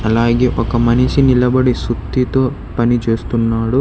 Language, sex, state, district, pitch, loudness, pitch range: Telugu, male, Telangana, Hyderabad, 120 Hz, -15 LUFS, 115-125 Hz